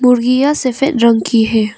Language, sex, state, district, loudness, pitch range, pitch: Hindi, female, Arunachal Pradesh, Papum Pare, -13 LUFS, 230-265 Hz, 245 Hz